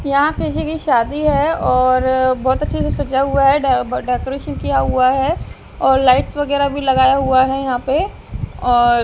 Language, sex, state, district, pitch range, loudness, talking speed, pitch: Hindi, female, Haryana, Jhajjar, 255-280 Hz, -16 LUFS, 185 wpm, 265 Hz